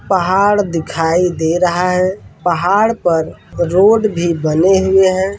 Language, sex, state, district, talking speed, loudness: Hindi, male, Uttar Pradesh, Varanasi, 135 wpm, -14 LUFS